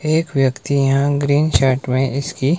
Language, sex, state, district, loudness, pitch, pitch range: Hindi, male, Himachal Pradesh, Shimla, -17 LUFS, 140 Hz, 135-145 Hz